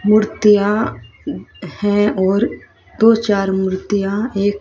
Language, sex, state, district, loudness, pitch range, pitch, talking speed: Hindi, female, Haryana, Rohtak, -16 LUFS, 200-215 Hz, 205 Hz, 90 wpm